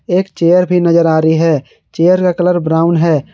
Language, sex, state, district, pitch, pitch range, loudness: Hindi, male, Jharkhand, Garhwa, 170 Hz, 160-180 Hz, -12 LUFS